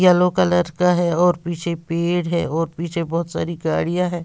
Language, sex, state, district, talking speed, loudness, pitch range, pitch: Hindi, female, Bihar, West Champaran, 195 wpm, -20 LUFS, 170-180 Hz, 170 Hz